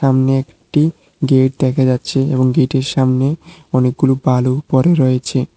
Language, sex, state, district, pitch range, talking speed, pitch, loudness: Bengali, male, Tripura, West Tripura, 130-140 Hz, 130 wpm, 130 Hz, -15 LUFS